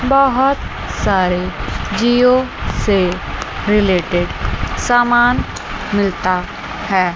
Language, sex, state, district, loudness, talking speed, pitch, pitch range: Hindi, female, Chandigarh, Chandigarh, -16 LUFS, 65 wpm, 205 Hz, 185-245 Hz